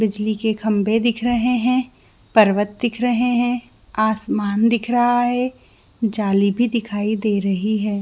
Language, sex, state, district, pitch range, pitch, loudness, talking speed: Hindi, female, Jharkhand, Jamtara, 210-240 Hz, 220 Hz, -19 LUFS, 150 wpm